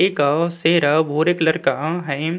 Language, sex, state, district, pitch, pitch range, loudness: Hindi, male, Uttarakhand, Tehri Garhwal, 160 Hz, 150-170 Hz, -18 LUFS